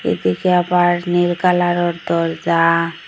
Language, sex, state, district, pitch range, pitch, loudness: Bengali, female, Assam, Hailakandi, 170-175 Hz, 175 Hz, -16 LUFS